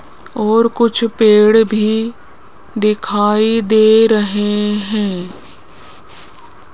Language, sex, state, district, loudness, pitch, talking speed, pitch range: Hindi, female, Rajasthan, Jaipur, -13 LUFS, 215 Hz, 70 wpm, 210-225 Hz